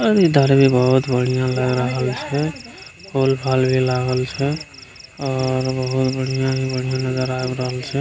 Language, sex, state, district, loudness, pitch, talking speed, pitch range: Maithili, male, Bihar, Begusarai, -19 LUFS, 130 Hz, 155 wpm, 130-135 Hz